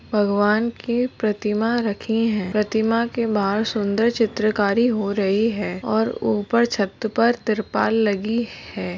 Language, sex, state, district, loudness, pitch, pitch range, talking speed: Hindi, female, Bihar, Jahanabad, -21 LUFS, 220 Hz, 210-230 Hz, 135 wpm